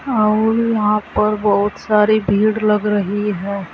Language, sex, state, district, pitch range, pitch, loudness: Hindi, female, Uttar Pradesh, Saharanpur, 205-215 Hz, 210 Hz, -16 LUFS